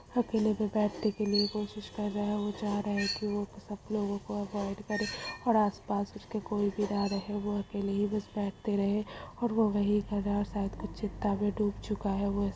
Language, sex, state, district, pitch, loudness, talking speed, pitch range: Magahi, female, Bihar, Gaya, 205 Hz, -32 LUFS, 215 wpm, 205-210 Hz